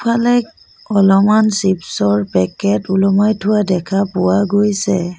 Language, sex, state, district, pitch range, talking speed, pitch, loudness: Assamese, female, Assam, Sonitpur, 180-210 Hz, 105 wpm, 195 Hz, -15 LUFS